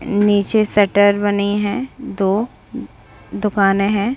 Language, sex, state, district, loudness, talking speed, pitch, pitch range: Hindi, female, Bihar, Saran, -17 LUFS, 115 wpm, 205 Hz, 200-215 Hz